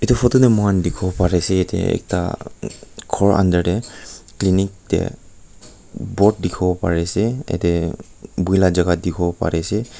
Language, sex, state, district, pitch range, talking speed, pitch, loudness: Nagamese, male, Nagaland, Kohima, 90-105 Hz, 170 wpm, 95 Hz, -18 LUFS